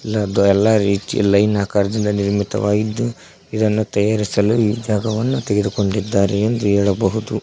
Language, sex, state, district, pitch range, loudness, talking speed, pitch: Kannada, male, Karnataka, Koppal, 100-110 Hz, -18 LUFS, 115 wpm, 105 Hz